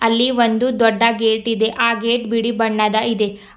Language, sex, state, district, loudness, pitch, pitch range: Kannada, female, Karnataka, Bidar, -17 LUFS, 230 Hz, 220-230 Hz